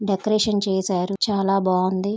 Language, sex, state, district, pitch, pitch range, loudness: Telugu, female, Andhra Pradesh, Guntur, 195 Hz, 190-205 Hz, -21 LUFS